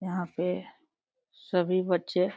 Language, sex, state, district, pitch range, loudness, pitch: Hindi, female, Uttar Pradesh, Deoria, 180-185 Hz, -29 LUFS, 180 Hz